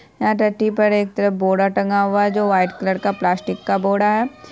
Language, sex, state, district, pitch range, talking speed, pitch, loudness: Hindi, female, Bihar, Purnia, 190-210 Hz, 225 wpm, 200 Hz, -18 LUFS